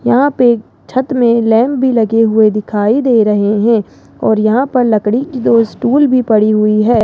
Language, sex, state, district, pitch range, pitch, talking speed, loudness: Hindi, male, Rajasthan, Jaipur, 215-250 Hz, 230 Hz, 195 wpm, -12 LUFS